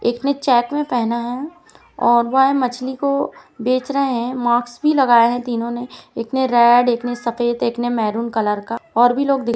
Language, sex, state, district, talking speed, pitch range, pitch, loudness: Hindi, female, Uttar Pradesh, Jalaun, 215 wpm, 235-265 Hz, 240 Hz, -18 LUFS